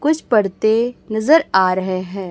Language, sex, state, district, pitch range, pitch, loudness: Hindi, male, Chhattisgarh, Raipur, 190-245 Hz, 215 Hz, -17 LUFS